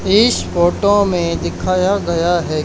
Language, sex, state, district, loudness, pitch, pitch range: Hindi, male, Haryana, Charkhi Dadri, -15 LUFS, 180 Hz, 170-200 Hz